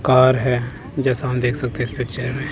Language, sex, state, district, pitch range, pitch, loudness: Hindi, male, Chandigarh, Chandigarh, 125-130 Hz, 125 Hz, -20 LUFS